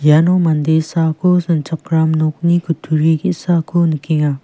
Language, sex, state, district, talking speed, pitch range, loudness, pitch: Garo, female, Meghalaya, West Garo Hills, 110 wpm, 155-170 Hz, -15 LUFS, 160 Hz